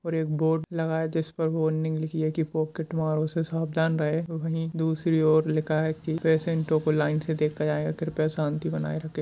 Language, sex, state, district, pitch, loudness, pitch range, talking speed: Hindi, male, Bihar, Madhepura, 160 Hz, -27 LUFS, 155-160 Hz, 215 wpm